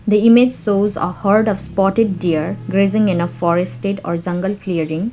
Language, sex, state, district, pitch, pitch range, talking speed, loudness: English, female, Sikkim, Gangtok, 195 Hz, 175-210 Hz, 175 wpm, -17 LUFS